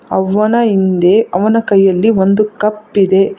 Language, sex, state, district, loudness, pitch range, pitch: Kannada, female, Karnataka, Bangalore, -12 LUFS, 190-215 Hz, 205 Hz